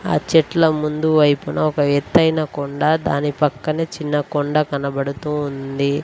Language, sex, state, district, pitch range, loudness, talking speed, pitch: Telugu, female, Telangana, Mahabubabad, 140-155 Hz, -19 LUFS, 130 wpm, 150 Hz